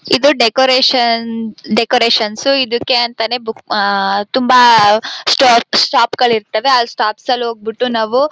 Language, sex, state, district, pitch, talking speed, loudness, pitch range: Kannada, female, Karnataka, Chamarajanagar, 235 Hz, 115 wpm, -12 LUFS, 225-255 Hz